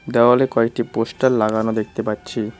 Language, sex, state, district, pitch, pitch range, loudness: Bengali, male, West Bengal, Cooch Behar, 115 Hz, 110-125 Hz, -19 LUFS